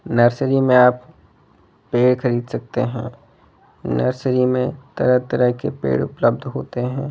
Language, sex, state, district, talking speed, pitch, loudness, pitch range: Hindi, male, Delhi, New Delhi, 150 wpm, 125 Hz, -19 LUFS, 120-130 Hz